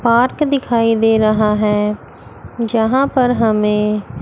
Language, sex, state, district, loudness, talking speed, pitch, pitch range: Hindi, female, Chandigarh, Chandigarh, -15 LUFS, 115 wpm, 225 Hz, 210-245 Hz